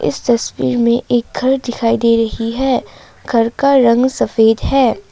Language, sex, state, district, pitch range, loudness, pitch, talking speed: Hindi, female, Assam, Kamrup Metropolitan, 230-255 Hz, -14 LUFS, 235 Hz, 165 wpm